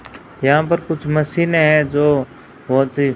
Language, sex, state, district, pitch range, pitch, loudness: Hindi, female, Rajasthan, Bikaner, 140-155 Hz, 150 Hz, -16 LUFS